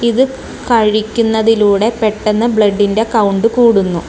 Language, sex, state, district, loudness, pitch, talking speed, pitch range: Malayalam, female, Kerala, Kollam, -12 LUFS, 220 Hz, 90 wpm, 210-235 Hz